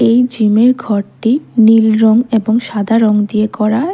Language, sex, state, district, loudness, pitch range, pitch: Bengali, female, Tripura, West Tripura, -12 LUFS, 215-235 Hz, 225 Hz